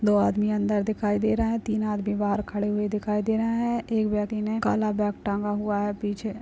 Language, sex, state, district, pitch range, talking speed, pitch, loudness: Hindi, female, Bihar, Purnia, 205-220 Hz, 245 wpm, 210 Hz, -26 LUFS